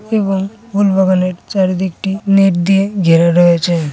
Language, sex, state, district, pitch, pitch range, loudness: Bengali, female, West Bengal, Kolkata, 190 Hz, 175-195 Hz, -13 LUFS